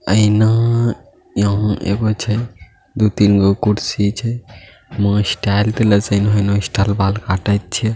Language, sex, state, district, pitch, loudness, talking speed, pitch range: Angika, male, Bihar, Bhagalpur, 100 Hz, -16 LUFS, 100 wpm, 100-110 Hz